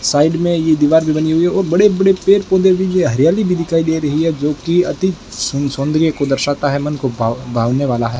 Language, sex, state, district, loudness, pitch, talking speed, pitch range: Hindi, male, Rajasthan, Bikaner, -15 LUFS, 155 Hz, 240 wpm, 140-175 Hz